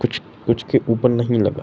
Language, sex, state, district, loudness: Hindi, male, Bihar, East Champaran, -19 LUFS